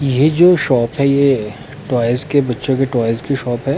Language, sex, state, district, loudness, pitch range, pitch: Hindi, male, Himachal Pradesh, Shimla, -15 LUFS, 120-140 Hz, 135 Hz